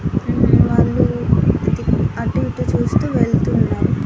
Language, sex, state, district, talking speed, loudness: Telugu, female, Andhra Pradesh, Annamaya, 105 wpm, -17 LUFS